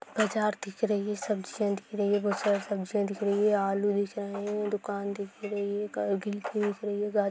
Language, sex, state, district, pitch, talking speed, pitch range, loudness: Hindi, female, Chhattisgarh, Jashpur, 205 Hz, 190 wpm, 200-210 Hz, -30 LUFS